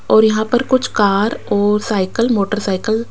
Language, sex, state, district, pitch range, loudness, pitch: Hindi, female, Rajasthan, Jaipur, 205-230 Hz, -16 LUFS, 215 Hz